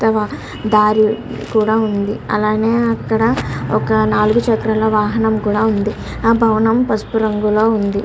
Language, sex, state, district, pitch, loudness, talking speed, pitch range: Telugu, male, Andhra Pradesh, Guntur, 215 Hz, -16 LUFS, 65 wpm, 210-225 Hz